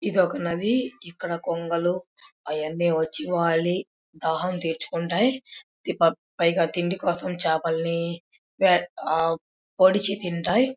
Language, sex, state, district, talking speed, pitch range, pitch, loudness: Telugu, male, Andhra Pradesh, Krishna, 100 wpm, 165-185 Hz, 170 Hz, -25 LUFS